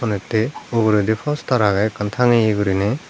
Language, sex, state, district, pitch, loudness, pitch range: Chakma, male, Tripura, Dhalai, 110 Hz, -18 LUFS, 105-120 Hz